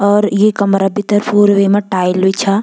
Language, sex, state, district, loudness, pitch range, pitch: Garhwali, female, Uttarakhand, Tehri Garhwal, -12 LUFS, 195-205 Hz, 200 Hz